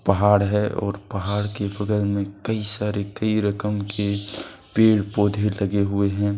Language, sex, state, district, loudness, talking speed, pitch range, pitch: Hindi, male, Jharkhand, Deoghar, -23 LUFS, 160 wpm, 100-105 Hz, 105 Hz